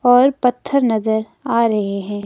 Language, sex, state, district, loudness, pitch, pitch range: Hindi, female, Himachal Pradesh, Shimla, -17 LUFS, 235 Hz, 215-250 Hz